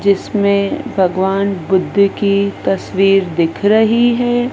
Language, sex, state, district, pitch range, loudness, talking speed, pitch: Hindi, female, Madhya Pradesh, Dhar, 190-215 Hz, -14 LUFS, 105 wpm, 200 Hz